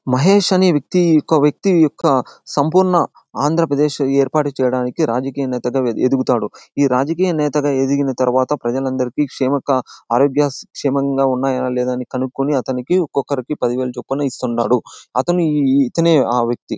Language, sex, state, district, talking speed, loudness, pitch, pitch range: Telugu, male, Andhra Pradesh, Anantapur, 120 wpm, -17 LUFS, 140 Hz, 130-150 Hz